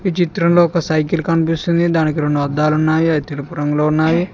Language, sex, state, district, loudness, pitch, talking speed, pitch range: Telugu, male, Telangana, Mahabubabad, -16 LUFS, 160 Hz, 165 wpm, 150-170 Hz